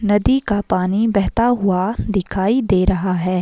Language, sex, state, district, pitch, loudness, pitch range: Hindi, female, Himachal Pradesh, Shimla, 205 Hz, -17 LUFS, 185-225 Hz